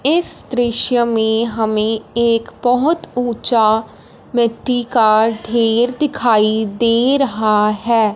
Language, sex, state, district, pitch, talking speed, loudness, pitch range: Hindi, female, Punjab, Fazilka, 230 Hz, 105 wpm, -15 LUFS, 220-245 Hz